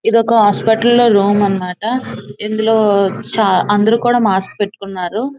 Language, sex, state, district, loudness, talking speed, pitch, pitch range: Telugu, female, Andhra Pradesh, Visakhapatnam, -13 LUFS, 135 wpm, 215 Hz, 200-230 Hz